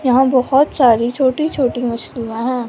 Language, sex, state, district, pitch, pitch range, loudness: Hindi, male, Punjab, Fazilka, 250 Hz, 240-265 Hz, -16 LUFS